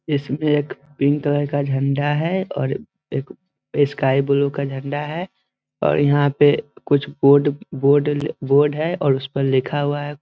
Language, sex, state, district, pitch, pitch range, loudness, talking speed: Hindi, male, Bihar, Muzaffarpur, 145 Hz, 140-145 Hz, -20 LUFS, 165 wpm